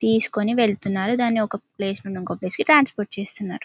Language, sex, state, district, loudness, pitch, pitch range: Telugu, female, Telangana, Karimnagar, -22 LUFS, 210 Hz, 195-225 Hz